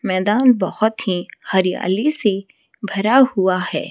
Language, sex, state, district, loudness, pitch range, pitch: Hindi, female, Odisha, Malkangiri, -18 LUFS, 185-220 Hz, 195 Hz